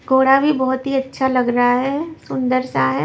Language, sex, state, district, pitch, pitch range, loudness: Hindi, female, Maharashtra, Washim, 265 Hz, 255-275 Hz, -18 LUFS